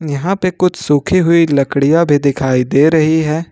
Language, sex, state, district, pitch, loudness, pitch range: Hindi, male, Jharkhand, Ranchi, 155 Hz, -13 LUFS, 140-170 Hz